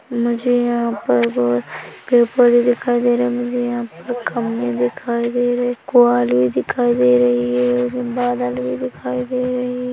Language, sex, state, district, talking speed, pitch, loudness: Hindi, female, Chhattisgarh, Rajnandgaon, 175 wpm, 235 Hz, -18 LUFS